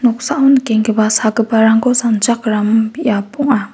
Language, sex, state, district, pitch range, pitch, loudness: Garo, female, Meghalaya, West Garo Hills, 220-250 Hz, 225 Hz, -13 LUFS